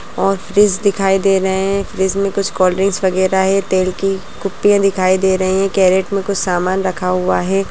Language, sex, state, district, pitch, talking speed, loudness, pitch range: Hindi, female, Bihar, Lakhisarai, 190 Hz, 200 wpm, -15 LUFS, 185-195 Hz